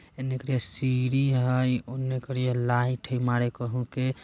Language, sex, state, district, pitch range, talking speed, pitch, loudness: Bajjika, male, Bihar, Vaishali, 125-130 Hz, 115 wpm, 125 Hz, -27 LUFS